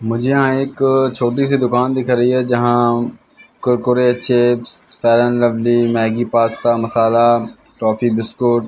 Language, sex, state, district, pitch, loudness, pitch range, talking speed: Hindi, male, Madhya Pradesh, Katni, 120 Hz, -15 LUFS, 115-125 Hz, 140 wpm